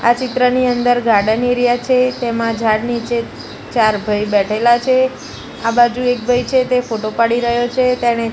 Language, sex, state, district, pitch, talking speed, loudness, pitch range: Gujarati, female, Gujarat, Gandhinagar, 240 Hz, 175 wpm, -15 LUFS, 230-250 Hz